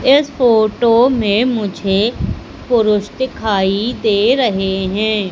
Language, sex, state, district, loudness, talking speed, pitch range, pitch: Hindi, female, Madhya Pradesh, Umaria, -15 LUFS, 100 wpm, 205-245 Hz, 215 Hz